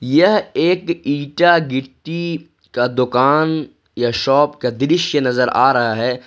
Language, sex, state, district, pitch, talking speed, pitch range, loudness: Hindi, male, Jharkhand, Ranchi, 140 Hz, 135 wpm, 125-160 Hz, -16 LUFS